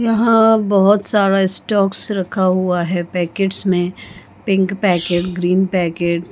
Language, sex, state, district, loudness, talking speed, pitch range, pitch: Hindi, female, Goa, North and South Goa, -16 LUFS, 135 wpm, 180-200 Hz, 190 Hz